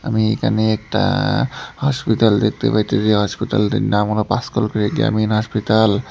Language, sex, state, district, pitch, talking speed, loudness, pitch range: Bengali, male, West Bengal, Alipurduar, 110 Hz, 130 wpm, -18 LUFS, 105-115 Hz